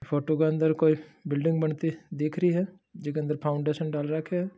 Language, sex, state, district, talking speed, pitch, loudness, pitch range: Marwari, male, Rajasthan, Nagaur, 195 wpm, 155 Hz, -28 LUFS, 150-165 Hz